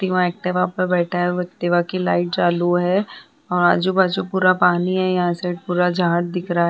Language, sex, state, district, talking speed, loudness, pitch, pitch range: Hindi, female, Bihar, Vaishali, 195 wpm, -19 LUFS, 180 Hz, 175-185 Hz